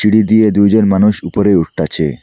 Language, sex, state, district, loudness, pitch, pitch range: Bengali, male, Assam, Hailakandi, -12 LUFS, 105 Hz, 100-105 Hz